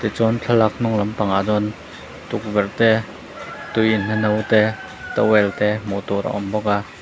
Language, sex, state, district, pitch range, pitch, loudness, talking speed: Mizo, male, Mizoram, Aizawl, 105-110 Hz, 105 Hz, -19 LUFS, 170 wpm